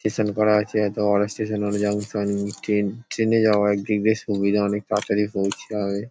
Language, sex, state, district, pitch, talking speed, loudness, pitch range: Bengali, male, West Bengal, Paschim Medinipur, 105 Hz, 195 wpm, -22 LUFS, 100-105 Hz